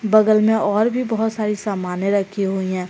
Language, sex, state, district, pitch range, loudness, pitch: Hindi, female, Jharkhand, Garhwa, 195-220 Hz, -19 LUFS, 210 Hz